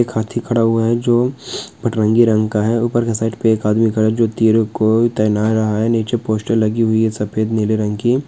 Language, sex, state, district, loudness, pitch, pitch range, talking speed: Hindi, male, West Bengal, Dakshin Dinajpur, -16 LUFS, 110 Hz, 110-115 Hz, 210 wpm